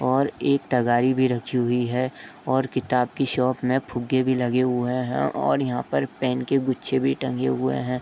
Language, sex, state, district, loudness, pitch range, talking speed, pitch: Hindi, male, Uttar Pradesh, Etah, -23 LUFS, 120-130 Hz, 200 wpm, 125 Hz